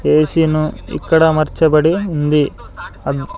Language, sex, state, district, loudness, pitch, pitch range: Telugu, male, Andhra Pradesh, Sri Satya Sai, -15 LUFS, 155 Hz, 150-160 Hz